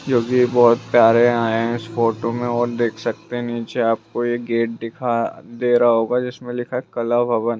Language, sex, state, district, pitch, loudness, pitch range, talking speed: Hindi, male, Bihar, Purnia, 120 Hz, -19 LUFS, 115-120 Hz, 205 wpm